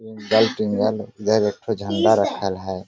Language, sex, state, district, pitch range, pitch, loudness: Hindi, male, Jharkhand, Sahebganj, 100-110 Hz, 105 Hz, -21 LUFS